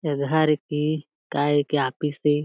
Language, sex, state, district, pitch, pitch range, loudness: Chhattisgarhi, male, Chhattisgarh, Jashpur, 150 Hz, 145-150 Hz, -24 LUFS